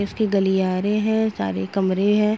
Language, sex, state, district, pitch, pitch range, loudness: Hindi, female, Uttar Pradesh, Etah, 200 Hz, 190-210 Hz, -21 LUFS